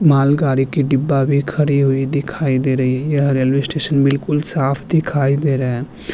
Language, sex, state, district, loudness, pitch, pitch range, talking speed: Hindi, male, Uttarakhand, Tehri Garhwal, -16 LUFS, 140 Hz, 135-145 Hz, 185 wpm